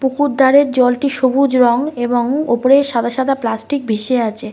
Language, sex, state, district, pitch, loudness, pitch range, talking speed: Bengali, female, West Bengal, North 24 Parganas, 260 Hz, -15 LUFS, 240-275 Hz, 160 wpm